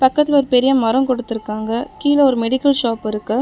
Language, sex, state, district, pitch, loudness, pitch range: Tamil, female, Tamil Nadu, Chennai, 255 Hz, -17 LUFS, 230-275 Hz